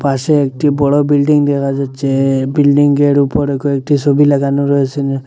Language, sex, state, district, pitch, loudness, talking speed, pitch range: Bengali, male, Assam, Hailakandi, 140 Hz, -13 LUFS, 135 wpm, 135-145 Hz